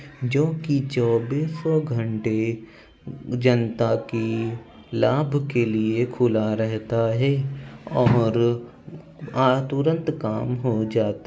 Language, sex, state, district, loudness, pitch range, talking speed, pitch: Hindi, male, Uttar Pradesh, Budaun, -23 LUFS, 115-135 Hz, 95 wpm, 120 Hz